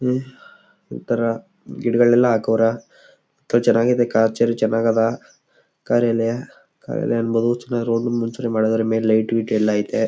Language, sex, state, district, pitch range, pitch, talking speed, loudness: Kannada, male, Karnataka, Chamarajanagar, 110-120 Hz, 115 Hz, 95 wpm, -19 LUFS